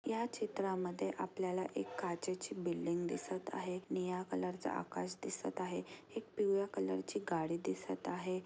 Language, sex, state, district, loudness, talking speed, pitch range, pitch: Marathi, female, Maharashtra, Aurangabad, -40 LUFS, 155 wpm, 165-185 Hz, 180 Hz